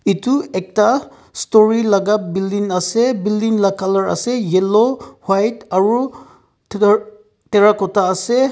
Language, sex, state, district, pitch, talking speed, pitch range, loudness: Nagamese, male, Nagaland, Kohima, 210 Hz, 115 wpm, 195-225 Hz, -16 LUFS